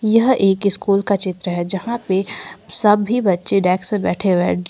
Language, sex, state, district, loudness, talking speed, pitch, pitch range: Hindi, female, Jharkhand, Ranchi, -17 LUFS, 180 wpm, 195 Hz, 185-210 Hz